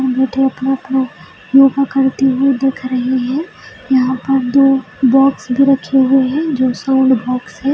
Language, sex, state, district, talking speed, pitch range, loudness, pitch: Hindi, female, Bihar, Jahanabad, 170 wpm, 255-270 Hz, -14 LUFS, 265 Hz